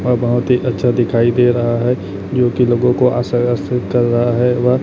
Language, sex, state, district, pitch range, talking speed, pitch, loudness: Hindi, male, Chhattisgarh, Raipur, 120-125 Hz, 225 wpm, 120 Hz, -15 LUFS